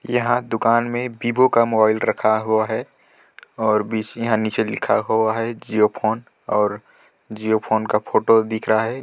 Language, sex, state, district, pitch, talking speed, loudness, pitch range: Hindi, male, Chhattisgarh, Sarguja, 110 Hz, 160 wpm, -20 LUFS, 110-115 Hz